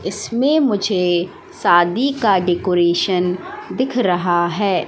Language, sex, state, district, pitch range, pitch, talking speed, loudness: Hindi, female, Madhya Pradesh, Katni, 175-225 Hz, 185 Hz, 100 wpm, -17 LUFS